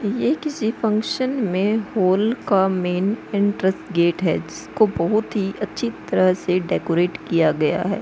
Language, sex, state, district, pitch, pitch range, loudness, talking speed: Hindi, female, Uttar Pradesh, Hamirpur, 200 Hz, 185-220 Hz, -21 LUFS, 140 wpm